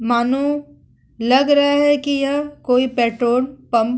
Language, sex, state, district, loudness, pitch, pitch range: Hindi, female, Uttar Pradesh, Muzaffarnagar, -18 LUFS, 260 Hz, 240-285 Hz